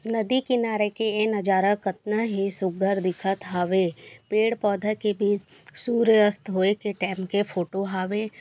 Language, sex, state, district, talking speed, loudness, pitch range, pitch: Chhattisgarhi, female, Chhattisgarh, Raigarh, 150 wpm, -25 LUFS, 190-215 Hz, 200 Hz